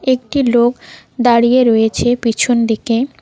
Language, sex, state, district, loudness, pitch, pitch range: Bengali, female, West Bengal, Cooch Behar, -14 LUFS, 240 Hz, 230-250 Hz